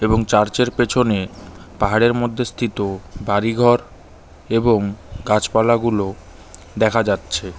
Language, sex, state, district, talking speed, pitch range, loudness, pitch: Bengali, male, West Bengal, Darjeeling, 105 wpm, 95-115 Hz, -18 LUFS, 105 Hz